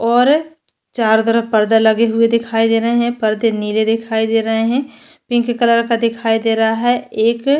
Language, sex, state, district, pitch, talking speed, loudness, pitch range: Hindi, female, Chhattisgarh, Sukma, 230 Hz, 190 wpm, -15 LUFS, 225-240 Hz